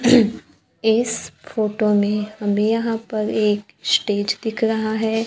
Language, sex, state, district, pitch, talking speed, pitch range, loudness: Hindi, female, Maharashtra, Gondia, 220 Hz, 125 wpm, 210-225 Hz, -20 LUFS